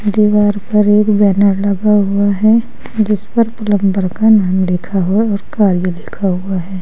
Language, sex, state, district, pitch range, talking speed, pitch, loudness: Hindi, female, Uttar Pradesh, Saharanpur, 195-210 Hz, 165 wpm, 205 Hz, -13 LUFS